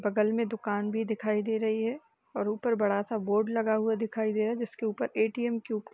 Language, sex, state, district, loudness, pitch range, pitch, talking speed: Hindi, female, Uttar Pradesh, Jalaun, -30 LUFS, 215-225 Hz, 220 Hz, 230 wpm